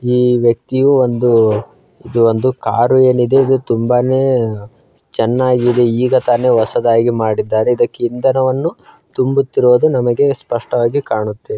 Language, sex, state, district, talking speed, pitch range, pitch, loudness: Kannada, male, Karnataka, Bijapur, 105 wpm, 115-130 Hz, 125 Hz, -14 LUFS